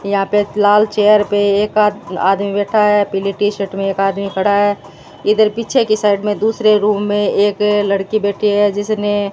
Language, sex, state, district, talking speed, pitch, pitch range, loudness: Hindi, female, Rajasthan, Bikaner, 200 wpm, 205 Hz, 200-210 Hz, -15 LUFS